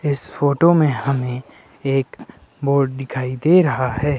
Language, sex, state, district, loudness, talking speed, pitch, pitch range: Hindi, male, Himachal Pradesh, Shimla, -18 LUFS, 145 wpm, 140 Hz, 130-145 Hz